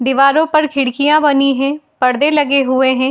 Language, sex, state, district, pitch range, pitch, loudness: Hindi, female, Uttar Pradesh, Etah, 265-295 Hz, 275 Hz, -13 LUFS